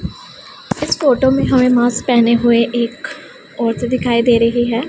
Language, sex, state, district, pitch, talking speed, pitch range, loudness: Hindi, female, Punjab, Pathankot, 240 Hz, 160 wpm, 235-250 Hz, -14 LUFS